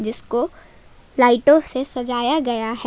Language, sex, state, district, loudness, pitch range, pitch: Hindi, female, Jharkhand, Palamu, -18 LUFS, 235-270 Hz, 245 Hz